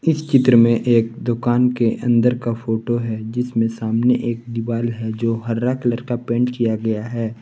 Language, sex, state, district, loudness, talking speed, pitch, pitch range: Hindi, male, Jharkhand, Garhwa, -19 LUFS, 185 wpm, 115 Hz, 115-120 Hz